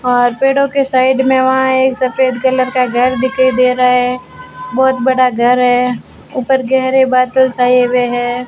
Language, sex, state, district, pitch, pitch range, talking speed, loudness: Hindi, female, Rajasthan, Bikaner, 255 Hz, 250-260 Hz, 175 wpm, -12 LUFS